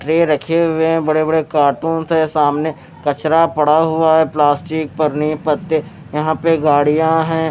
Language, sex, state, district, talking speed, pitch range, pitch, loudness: Hindi, male, Maharashtra, Mumbai Suburban, 150 wpm, 150-160 Hz, 155 Hz, -15 LUFS